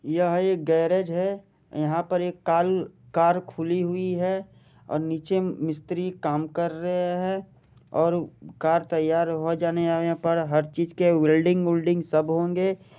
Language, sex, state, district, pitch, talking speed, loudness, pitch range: Hindi, male, Jharkhand, Jamtara, 170 Hz, 145 wpm, -25 LUFS, 165-180 Hz